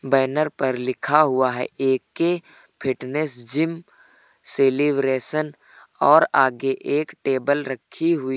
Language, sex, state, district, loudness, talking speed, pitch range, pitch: Hindi, male, Uttar Pradesh, Lucknow, -22 LUFS, 115 wpm, 130-155 Hz, 135 Hz